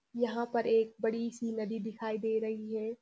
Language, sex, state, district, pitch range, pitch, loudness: Hindi, female, Uttarakhand, Uttarkashi, 220-235 Hz, 225 Hz, -34 LUFS